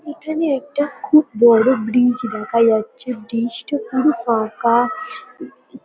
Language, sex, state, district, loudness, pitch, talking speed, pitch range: Bengali, female, West Bengal, Kolkata, -18 LUFS, 255 Hz, 125 wpm, 230-305 Hz